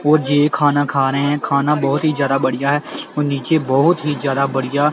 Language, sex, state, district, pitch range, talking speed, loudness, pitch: Punjabi, male, Punjab, Kapurthala, 140-150 Hz, 195 wpm, -17 LUFS, 145 Hz